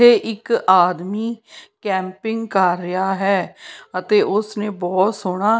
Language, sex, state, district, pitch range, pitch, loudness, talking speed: Punjabi, female, Punjab, Pathankot, 185-225 Hz, 200 Hz, -19 LUFS, 140 wpm